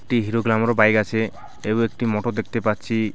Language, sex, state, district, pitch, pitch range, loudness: Bengali, male, West Bengal, Alipurduar, 110 Hz, 110-115 Hz, -21 LUFS